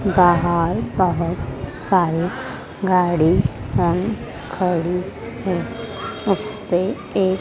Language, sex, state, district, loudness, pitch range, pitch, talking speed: Hindi, female, Madhya Pradesh, Dhar, -20 LUFS, 170-195 Hz, 180 Hz, 65 wpm